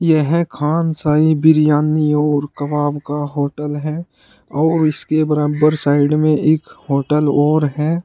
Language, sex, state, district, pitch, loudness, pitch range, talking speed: Hindi, male, Uttar Pradesh, Saharanpur, 150 Hz, -16 LUFS, 145-155 Hz, 135 wpm